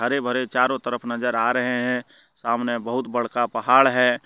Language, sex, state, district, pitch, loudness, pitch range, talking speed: Hindi, male, Jharkhand, Deoghar, 125 Hz, -22 LUFS, 120-125 Hz, 185 wpm